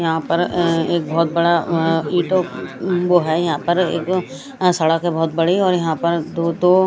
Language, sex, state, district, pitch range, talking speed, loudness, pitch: Hindi, female, Punjab, Fazilka, 165-180 Hz, 200 wpm, -18 LUFS, 170 Hz